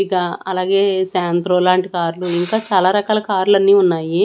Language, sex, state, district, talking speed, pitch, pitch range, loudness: Telugu, female, Andhra Pradesh, Annamaya, 155 wpm, 185 Hz, 180-195 Hz, -16 LUFS